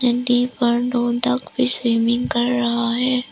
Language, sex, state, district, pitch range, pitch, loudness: Hindi, female, Arunachal Pradesh, Lower Dibang Valley, 240-250 Hz, 245 Hz, -19 LUFS